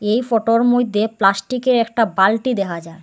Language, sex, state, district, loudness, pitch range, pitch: Bengali, female, Assam, Hailakandi, -17 LUFS, 195-240 Hz, 225 Hz